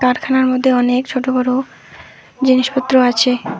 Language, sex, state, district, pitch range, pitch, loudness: Bengali, female, West Bengal, Alipurduar, 250-260 Hz, 255 Hz, -15 LUFS